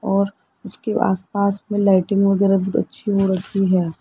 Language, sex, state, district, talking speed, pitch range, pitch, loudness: Hindi, male, Rajasthan, Jaipur, 180 wpm, 190-200 Hz, 195 Hz, -19 LUFS